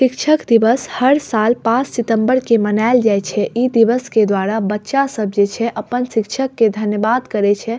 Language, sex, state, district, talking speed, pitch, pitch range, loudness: Maithili, female, Bihar, Saharsa, 185 wpm, 230 Hz, 215-250 Hz, -16 LUFS